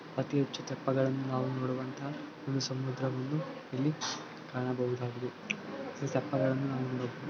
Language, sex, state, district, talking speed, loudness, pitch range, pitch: Kannada, male, Karnataka, Belgaum, 90 wpm, -35 LUFS, 130-135 Hz, 130 Hz